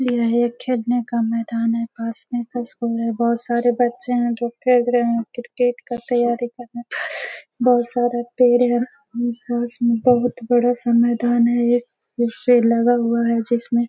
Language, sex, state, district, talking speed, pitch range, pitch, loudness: Hindi, female, Bihar, Gaya, 175 wpm, 235-245 Hz, 240 Hz, -20 LUFS